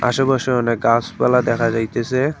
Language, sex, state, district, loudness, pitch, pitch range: Bengali, male, West Bengal, Cooch Behar, -18 LUFS, 120 Hz, 115-130 Hz